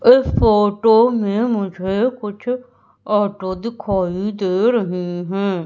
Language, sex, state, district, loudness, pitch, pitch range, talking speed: Hindi, female, Madhya Pradesh, Umaria, -18 LUFS, 210 Hz, 190-230 Hz, 105 wpm